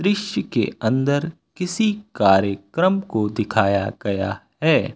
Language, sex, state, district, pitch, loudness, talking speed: Hindi, male, Uttar Pradesh, Lucknow, 120 Hz, -21 LUFS, 110 wpm